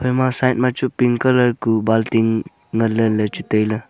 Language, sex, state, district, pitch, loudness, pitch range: Wancho, male, Arunachal Pradesh, Longding, 115 Hz, -18 LUFS, 110-125 Hz